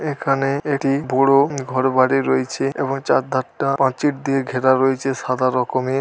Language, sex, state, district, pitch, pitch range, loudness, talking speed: Bengali, male, West Bengal, Dakshin Dinajpur, 135 Hz, 130-135 Hz, -19 LUFS, 160 wpm